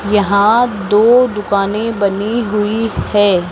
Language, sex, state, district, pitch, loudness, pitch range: Hindi, female, Rajasthan, Jaipur, 210 Hz, -13 LUFS, 200-225 Hz